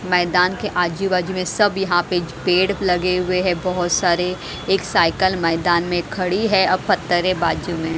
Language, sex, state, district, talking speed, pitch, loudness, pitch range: Hindi, female, Haryana, Jhajjar, 175 wpm, 180 Hz, -19 LUFS, 175-185 Hz